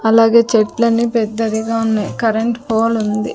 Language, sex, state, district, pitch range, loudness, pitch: Telugu, female, Andhra Pradesh, Sri Satya Sai, 220-230 Hz, -15 LUFS, 225 Hz